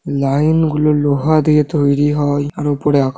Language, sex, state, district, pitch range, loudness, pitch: Bengali, male, West Bengal, North 24 Parganas, 145-150 Hz, -15 LUFS, 145 Hz